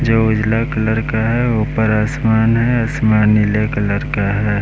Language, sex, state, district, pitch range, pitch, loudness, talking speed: Hindi, male, Bihar, West Champaran, 105-115 Hz, 110 Hz, -16 LUFS, 170 wpm